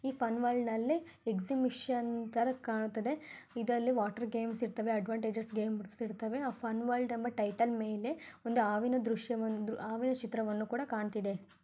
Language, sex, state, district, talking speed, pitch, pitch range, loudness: Kannada, female, Karnataka, Gulbarga, 115 wpm, 230 Hz, 220-245 Hz, -36 LUFS